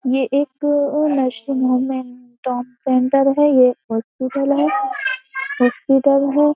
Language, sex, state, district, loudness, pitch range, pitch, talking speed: Hindi, female, Uttar Pradesh, Jyotiba Phule Nagar, -18 LUFS, 255-285 Hz, 270 Hz, 120 wpm